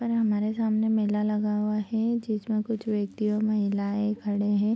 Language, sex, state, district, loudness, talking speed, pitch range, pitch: Hindi, female, Bihar, Bhagalpur, -27 LUFS, 175 wpm, 210-220 Hz, 215 Hz